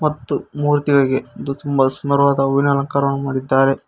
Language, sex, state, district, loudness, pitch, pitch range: Kannada, male, Karnataka, Koppal, -18 LUFS, 140 Hz, 135-140 Hz